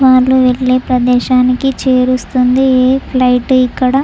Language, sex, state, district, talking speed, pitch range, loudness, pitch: Telugu, female, Andhra Pradesh, Chittoor, 120 wpm, 250-260 Hz, -11 LUFS, 255 Hz